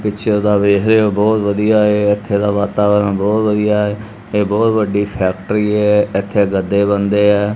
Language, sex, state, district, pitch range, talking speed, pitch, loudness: Punjabi, male, Punjab, Kapurthala, 100-105 Hz, 180 wpm, 105 Hz, -14 LUFS